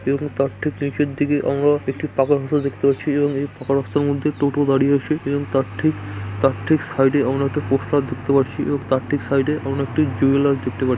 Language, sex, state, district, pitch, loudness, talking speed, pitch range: Bengali, male, West Bengal, Malda, 140 Hz, -20 LUFS, 225 wpm, 135-145 Hz